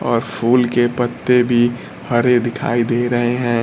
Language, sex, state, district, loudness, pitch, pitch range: Hindi, male, Bihar, Kaimur, -17 LUFS, 120 Hz, 120-125 Hz